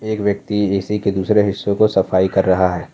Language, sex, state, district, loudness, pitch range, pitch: Hindi, male, Jharkhand, Ranchi, -17 LUFS, 95-105 Hz, 100 Hz